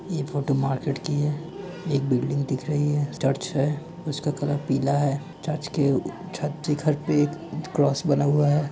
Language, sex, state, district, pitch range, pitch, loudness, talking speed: Hindi, male, West Bengal, Purulia, 140-155 Hz, 145 Hz, -25 LUFS, 185 wpm